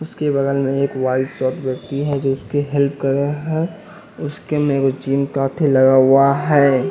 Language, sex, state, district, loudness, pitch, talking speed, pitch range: Hindi, male, Bihar, West Champaran, -17 LUFS, 140 Hz, 180 wpm, 135-145 Hz